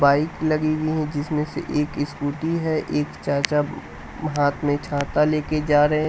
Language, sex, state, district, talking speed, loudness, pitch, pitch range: Hindi, male, Bihar, West Champaran, 185 wpm, -23 LUFS, 150 Hz, 145-155 Hz